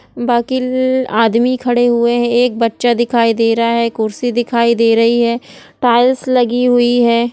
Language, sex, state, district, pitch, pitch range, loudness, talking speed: Hindi, female, Bihar, Jahanabad, 240 Hz, 235-245 Hz, -13 LUFS, 165 wpm